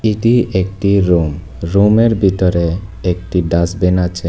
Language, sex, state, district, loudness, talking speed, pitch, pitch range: Bengali, male, Tripura, West Tripura, -14 LUFS, 110 wpm, 90 Hz, 85-100 Hz